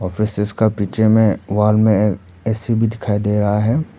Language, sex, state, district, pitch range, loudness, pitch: Hindi, male, Arunachal Pradesh, Papum Pare, 105-110 Hz, -17 LUFS, 105 Hz